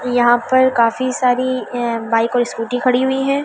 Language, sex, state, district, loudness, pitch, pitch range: Hindi, female, Delhi, New Delhi, -16 LUFS, 245 Hz, 240-255 Hz